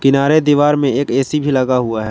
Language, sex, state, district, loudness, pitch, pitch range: Hindi, male, Jharkhand, Ranchi, -14 LUFS, 135 Hz, 130-145 Hz